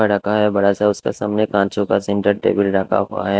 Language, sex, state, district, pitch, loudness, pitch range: Hindi, male, Delhi, New Delhi, 100 Hz, -18 LUFS, 100-105 Hz